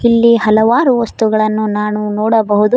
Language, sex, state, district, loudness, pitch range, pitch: Kannada, female, Karnataka, Koppal, -12 LUFS, 210-235 Hz, 220 Hz